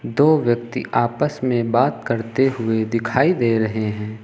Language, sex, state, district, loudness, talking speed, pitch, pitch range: Hindi, male, Uttar Pradesh, Lucknow, -19 LUFS, 155 wpm, 120 Hz, 115-130 Hz